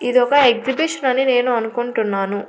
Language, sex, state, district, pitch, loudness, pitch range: Telugu, female, Andhra Pradesh, Annamaya, 245 Hz, -17 LUFS, 230-265 Hz